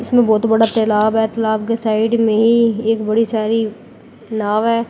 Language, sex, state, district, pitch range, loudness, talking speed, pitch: Hindi, female, Uttar Pradesh, Lalitpur, 220-230 Hz, -16 LUFS, 185 wpm, 225 Hz